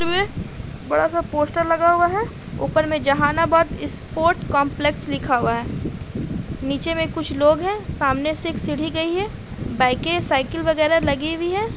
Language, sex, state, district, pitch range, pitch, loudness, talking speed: Hindi, female, Bihar, Gaya, 295-340 Hz, 325 Hz, -21 LUFS, 160 wpm